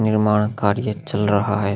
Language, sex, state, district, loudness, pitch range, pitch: Hindi, male, Chhattisgarh, Sukma, -20 LUFS, 100-105 Hz, 105 Hz